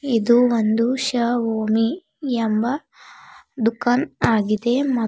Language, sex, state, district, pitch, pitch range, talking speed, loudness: Kannada, female, Karnataka, Bidar, 240 Hz, 225-260 Hz, 85 wpm, -20 LUFS